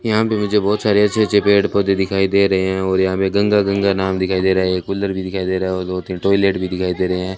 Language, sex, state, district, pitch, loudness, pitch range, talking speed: Hindi, male, Rajasthan, Bikaner, 95 Hz, -17 LUFS, 95-100 Hz, 315 wpm